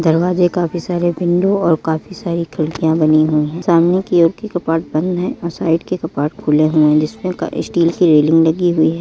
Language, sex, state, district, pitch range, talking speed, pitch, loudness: Hindi, female, Uttar Pradesh, Etah, 160-175 Hz, 205 wpm, 170 Hz, -15 LUFS